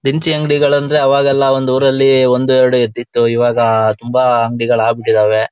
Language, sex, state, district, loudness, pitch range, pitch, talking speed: Kannada, male, Karnataka, Shimoga, -13 LUFS, 115-135 Hz, 125 Hz, 150 wpm